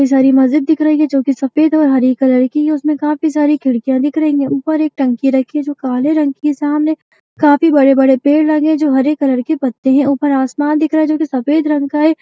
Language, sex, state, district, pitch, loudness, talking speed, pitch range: Hindi, female, Bihar, Jamui, 290 Hz, -13 LUFS, 265 wpm, 270-305 Hz